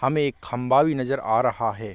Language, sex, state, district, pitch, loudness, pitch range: Hindi, male, Chhattisgarh, Bilaspur, 125 Hz, -23 LUFS, 115-135 Hz